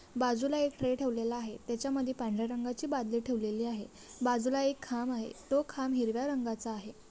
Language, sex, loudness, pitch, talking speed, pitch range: Marathi, female, -34 LUFS, 245 Hz, 175 wpm, 230-265 Hz